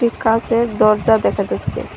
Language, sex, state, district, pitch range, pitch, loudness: Bengali, female, Tripura, Dhalai, 220-235 Hz, 225 Hz, -16 LUFS